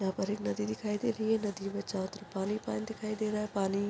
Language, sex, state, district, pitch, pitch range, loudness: Hindi, female, Chhattisgarh, Korba, 205 Hz, 190-215 Hz, -34 LUFS